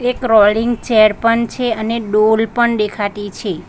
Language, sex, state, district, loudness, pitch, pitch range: Gujarati, female, Gujarat, Valsad, -15 LUFS, 220 Hz, 210-235 Hz